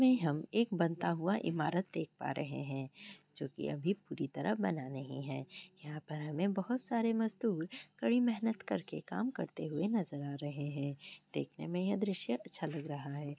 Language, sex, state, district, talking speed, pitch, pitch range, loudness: Hindi, female, Bihar, Kishanganj, 195 wpm, 180 Hz, 145-210 Hz, -37 LUFS